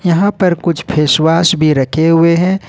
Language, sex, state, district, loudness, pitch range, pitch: Hindi, male, Jharkhand, Ranchi, -12 LUFS, 155-180 Hz, 170 Hz